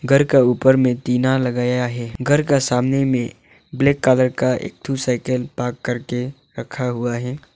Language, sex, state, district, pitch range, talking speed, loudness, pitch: Hindi, male, Arunachal Pradesh, Longding, 125-135 Hz, 175 wpm, -19 LUFS, 125 Hz